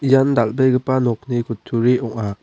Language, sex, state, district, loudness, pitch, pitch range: Garo, male, Meghalaya, West Garo Hills, -18 LUFS, 120 Hz, 115-130 Hz